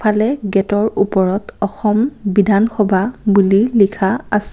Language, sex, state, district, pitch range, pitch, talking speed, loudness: Assamese, female, Assam, Kamrup Metropolitan, 200-215 Hz, 205 Hz, 105 wpm, -15 LUFS